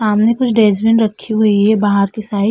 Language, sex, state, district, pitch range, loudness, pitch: Hindi, female, Uttar Pradesh, Budaun, 205-220 Hz, -13 LUFS, 215 Hz